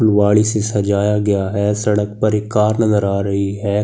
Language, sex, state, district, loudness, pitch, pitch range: Hindi, male, Delhi, New Delhi, -16 LUFS, 105 Hz, 100-105 Hz